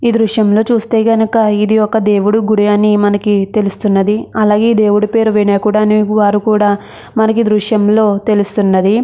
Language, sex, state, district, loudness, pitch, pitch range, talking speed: Telugu, female, Andhra Pradesh, Krishna, -12 LUFS, 210 Hz, 205-220 Hz, 140 wpm